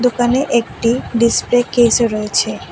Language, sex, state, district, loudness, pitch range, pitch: Bengali, female, Tripura, West Tripura, -15 LUFS, 230-245 Hz, 235 Hz